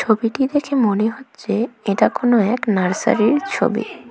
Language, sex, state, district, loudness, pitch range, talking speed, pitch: Bengali, female, West Bengal, Cooch Behar, -18 LUFS, 215-265 Hz, 145 wpm, 230 Hz